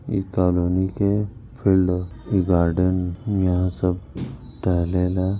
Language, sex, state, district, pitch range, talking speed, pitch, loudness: Hindi, male, Uttar Pradesh, Varanasi, 90-100 Hz, 135 wpm, 90 Hz, -22 LUFS